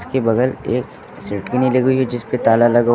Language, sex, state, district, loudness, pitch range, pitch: Hindi, male, Uttar Pradesh, Lucknow, -17 LUFS, 115-130 Hz, 120 Hz